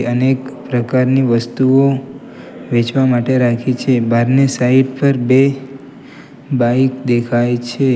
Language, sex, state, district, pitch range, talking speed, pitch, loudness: Gujarati, male, Gujarat, Valsad, 120-135 Hz, 105 wpm, 130 Hz, -14 LUFS